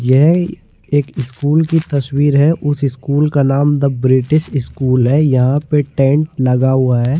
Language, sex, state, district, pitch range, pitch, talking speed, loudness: Hindi, male, Chandigarh, Chandigarh, 130-150 Hz, 140 Hz, 165 wpm, -14 LUFS